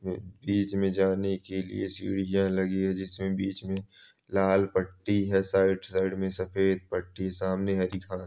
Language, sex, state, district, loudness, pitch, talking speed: Hindi, male, Chhattisgarh, Balrampur, -29 LUFS, 95 Hz, 150 wpm